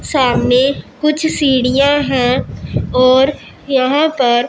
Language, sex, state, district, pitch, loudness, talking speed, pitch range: Hindi, male, Punjab, Pathankot, 265 Hz, -14 LUFS, 95 wpm, 255-290 Hz